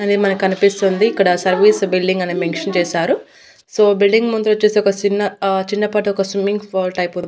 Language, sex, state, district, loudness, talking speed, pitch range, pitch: Telugu, female, Andhra Pradesh, Annamaya, -16 LUFS, 175 wpm, 185-205 Hz, 200 Hz